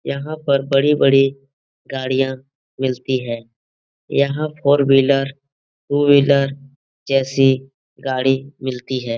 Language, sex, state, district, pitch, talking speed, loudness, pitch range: Hindi, male, Bihar, Jahanabad, 135 Hz, 105 wpm, -18 LUFS, 130-140 Hz